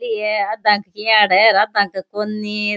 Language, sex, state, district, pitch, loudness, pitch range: Rajasthani, female, Rajasthan, Churu, 210 Hz, -16 LUFS, 205-215 Hz